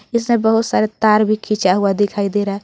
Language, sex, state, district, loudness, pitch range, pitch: Hindi, female, Jharkhand, Garhwa, -16 LUFS, 200-220 Hz, 215 Hz